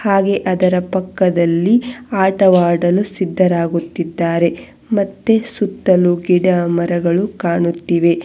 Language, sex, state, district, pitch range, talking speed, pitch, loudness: Kannada, female, Karnataka, Bangalore, 170-195 Hz, 75 wpm, 180 Hz, -15 LUFS